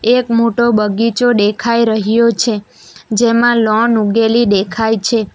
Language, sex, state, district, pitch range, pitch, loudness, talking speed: Gujarati, female, Gujarat, Valsad, 215-235 Hz, 230 Hz, -13 LUFS, 125 wpm